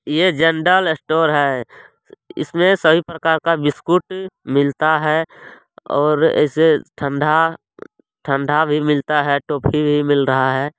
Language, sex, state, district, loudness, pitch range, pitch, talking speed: Maithili, male, Bihar, Supaul, -17 LUFS, 145-165 Hz, 150 Hz, 130 wpm